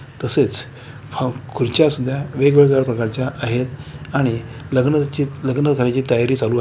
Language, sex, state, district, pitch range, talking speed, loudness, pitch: Marathi, male, Maharashtra, Pune, 125-140 Hz, 125 wpm, -18 LUFS, 130 Hz